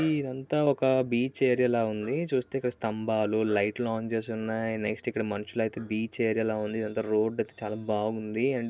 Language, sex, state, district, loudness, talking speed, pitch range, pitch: Telugu, male, Andhra Pradesh, Visakhapatnam, -29 LUFS, 180 wpm, 110-125 Hz, 110 Hz